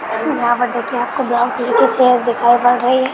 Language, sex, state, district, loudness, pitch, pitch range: Hindi, female, West Bengal, Malda, -15 LUFS, 245 Hz, 240-255 Hz